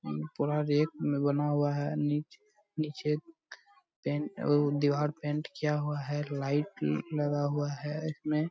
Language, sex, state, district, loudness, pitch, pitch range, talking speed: Hindi, male, Bihar, Purnia, -32 LUFS, 150 Hz, 145-150 Hz, 140 wpm